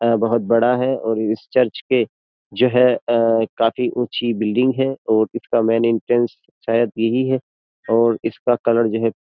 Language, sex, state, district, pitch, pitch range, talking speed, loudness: Hindi, male, Uttar Pradesh, Jyotiba Phule Nagar, 115 Hz, 115-125 Hz, 170 wpm, -18 LUFS